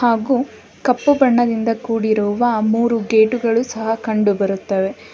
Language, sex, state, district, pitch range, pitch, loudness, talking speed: Kannada, female, Karnataka, Bangalore, 215-240 Hz, 225 Hz, -17 LUFS, 105 wpm